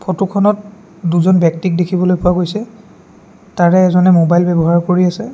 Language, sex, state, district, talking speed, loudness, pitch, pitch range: Assamese, male, Assam, Sonitpur, 135 wpm, -13 LUFS, 180 Hz, 175-195 Hz